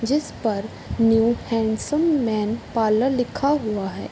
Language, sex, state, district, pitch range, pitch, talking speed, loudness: Hindi, female, Bihar, Sitamarhi, 220-265 Hz, 225 Hz, 130 wpm, -22 LUFS